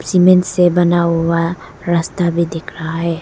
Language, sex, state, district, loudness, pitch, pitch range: Hindi, female, Arunachal Pradesh, Lower Dibang Valley, -15 LUFS, 170 Hz, 165-175 Hz